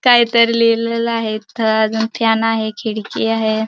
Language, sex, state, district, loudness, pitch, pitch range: Marathi, female, Maharashtra, Dhule, -16 LUFS, 225 Hz, 220-230 Hz